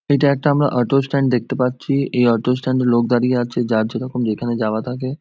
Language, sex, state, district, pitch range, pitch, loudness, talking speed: Bengali, male, West Bengal, Jhargram, 120-135 Hz, 125 Hz, -18 LUFS, 220 wpm